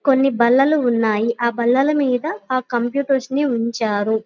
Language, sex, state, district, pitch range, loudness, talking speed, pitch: Telugu, female, Andhra Pradesh, Guntur, 235-270 Hz, -18 LUFS, 140 wpm, 245 Hz